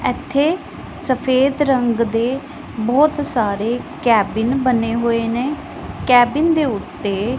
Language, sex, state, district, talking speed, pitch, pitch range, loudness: Punjabi, female, Punjab, Pathankot, 105 wpm, 250 Hz, 230-280 Hz, -18 LUFS